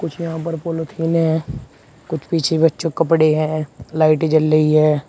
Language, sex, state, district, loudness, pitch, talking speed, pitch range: Hindi, male, Uttar Pradesh, Shamli, -18 LUFS, 160 Hz, 175 wpm, 155-165 Hz